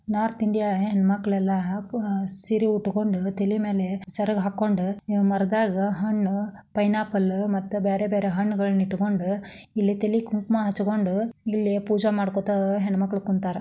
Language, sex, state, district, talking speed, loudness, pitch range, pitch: Kannada, female, Karnataka, Dharwad, 125 wpm, -24 LUFS, 195-210 Hz, 205 Hz